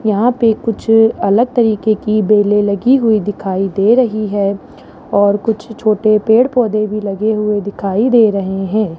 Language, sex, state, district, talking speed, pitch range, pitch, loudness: Hindi, male, Rajasthan, Jaipur, 165 wpm, 205-225 Hz, 215 Hz, -14 LUFS